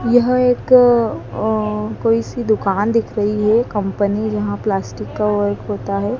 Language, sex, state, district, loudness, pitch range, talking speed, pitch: Hindi, female, Madhya Pradesh, Dhar, -17 LUFS, 205-230 Hz, 155 wpm, 215 Hz